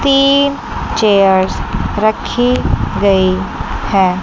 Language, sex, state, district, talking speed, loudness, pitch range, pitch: Hindi, female, Chandigarh, Chandigarh, 70 wpm, -13 LUFS, 190-255 Hz, 205 Hz